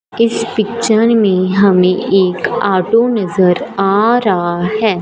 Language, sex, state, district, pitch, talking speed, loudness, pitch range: Hindi, female, Punjab, Fazilka, 200 Hz, 120 wpm, -13 LUFS, 185-225 Hz